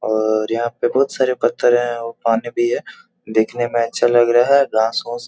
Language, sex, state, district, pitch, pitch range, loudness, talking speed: Hindi, male, Bihar, Jahanabad, 120 Hz, 115-120 Hz, -17 LUFS, 225 wpm